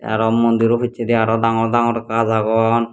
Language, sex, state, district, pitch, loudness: Chakma, male, Tripura, Dhalai, 115 Hz, -17 LUFS